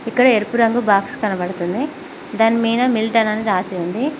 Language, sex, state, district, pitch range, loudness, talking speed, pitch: Telugu, female, Telangana, Mahabubabad, 205-250 Hz, -18 LUFS, 145 wpm, 225 Hz